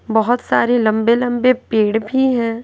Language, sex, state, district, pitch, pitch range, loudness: Hindi, female, Bihar, West Champaran, 235 Hz, 220-245 Hz, -16 LUFS